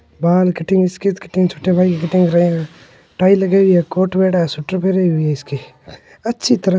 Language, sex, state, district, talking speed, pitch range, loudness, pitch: Hindi, male, Rajasthan, Churu, 150 wpm, 170-190 Hz, -15 LUFS, 185 Hz